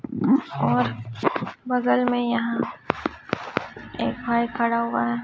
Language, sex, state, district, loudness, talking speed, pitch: Hindi, female, Chhattisgarh, Raipur, -24 LUFS, 90 wpm, 235 Hz